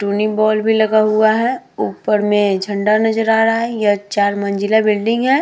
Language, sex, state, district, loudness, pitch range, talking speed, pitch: Hindi, female, Bihar, Vaishali, -15 LUFS, 205-225 Hz, 200 wpm, 215 Hz